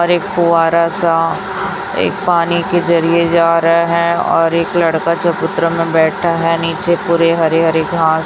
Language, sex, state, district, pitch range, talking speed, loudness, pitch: Hindi, female, Chhattisgarh, Raipur, 165-170 Hz, 165 wpm, -13 LUFS, 170 Hz